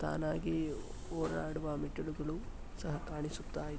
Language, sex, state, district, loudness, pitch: Kannada, male, Karnataka, Mysore, -40 LUFS, 150 Hz